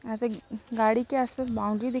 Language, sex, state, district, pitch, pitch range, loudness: Hindi, female, Jharkhand, Sahebganj, 235 Hz, 220-255 Hz, -28 LUFS